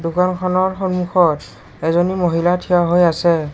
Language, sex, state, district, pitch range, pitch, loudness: Assamese, male, Assam, Kamrup Metropolitan, 165-180 Hz, 175 Hz, -16 LUFS